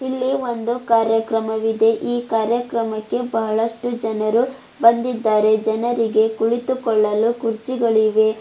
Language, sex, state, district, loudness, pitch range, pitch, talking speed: Kannada, female, Karnataka, Bidar, -19 LUFS, 220-240 Hz, 225 Hz, 80 wpm